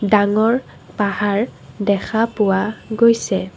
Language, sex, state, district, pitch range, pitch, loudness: Assamese, female, Assam, Kamrup Metropolitan, 200-225 Hz, 210 Hz, -18 LUFS